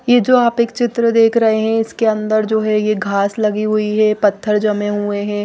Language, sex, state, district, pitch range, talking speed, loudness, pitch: Hindi, female, Odisha, Nuapada, 210-230 Hz, 230 wpm, -15 LUFS, 215 Hz